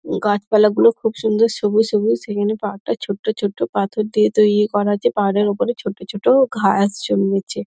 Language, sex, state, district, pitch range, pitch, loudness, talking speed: Bengali, female, West Bengal, Dakshin Dinajpur, 200-215 Hz, 205 Hz, -18 LUFS, 165 wpm